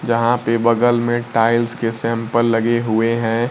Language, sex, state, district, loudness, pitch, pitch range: Hindi, male, Bihar, Kaimur, -17 LUFS, 115 Hz, 115-120 Hz